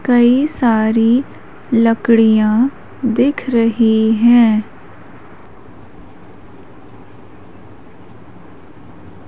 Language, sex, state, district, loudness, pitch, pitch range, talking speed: Hindi, female, Madhya Pradesh, Umaria, -13 LUFS, 230 Hz, 225-245 Hz, 40 wpm